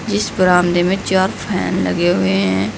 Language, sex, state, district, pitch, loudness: Hindi, female, Uttar Pradesh, Saharanpur, 180 Hz, -16 LUFS